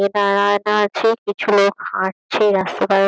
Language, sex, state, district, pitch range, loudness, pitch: Bengali, female, West Bengal, Kolkata, 200-210 Hz, -17 LUFS, 205 Hz